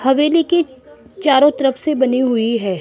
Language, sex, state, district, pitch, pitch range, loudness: Hindi, female, Rajasthan, Jaipur, 270 Hz, 255-300 Hz, -15 LUFS